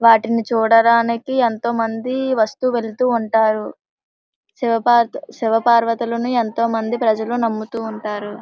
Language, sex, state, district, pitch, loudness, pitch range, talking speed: Telugu, female, Andhra Pradesh, Srikakulam, 230 Hz, -18 LUFS, 225-235 Hz, 120 wpm